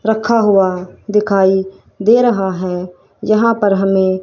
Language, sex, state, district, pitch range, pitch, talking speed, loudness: Hindi, female, Haryana, Rohtak, 190-215 Hz, 195 Hz, 130 wpm, -14 LUFS